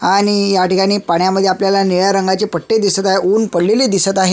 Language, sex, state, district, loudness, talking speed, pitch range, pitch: Marathi, male, Maharashtra, Sindhudurg, -14 LUFS, 195 wpm, 190-200 Hz, 195 Hz